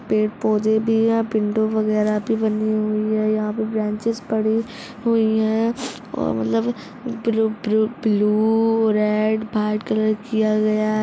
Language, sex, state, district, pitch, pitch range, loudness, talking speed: Hindi, female, Jharkhand, Jamtara, 215 Hz, 215-225 Hz, -20 LUFS, 145 wpm